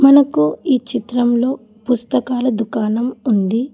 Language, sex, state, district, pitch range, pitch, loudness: Telugu, female, Telangana, Hyderabad, 220-255 Hz, 245 Hz, -17 LUFS